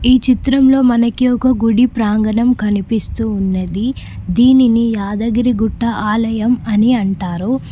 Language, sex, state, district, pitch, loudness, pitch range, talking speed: Telugu, female, Telangana, Mahabubabad, 230 Hz, -14 LUFS, 210-250 Hz, 100 wpm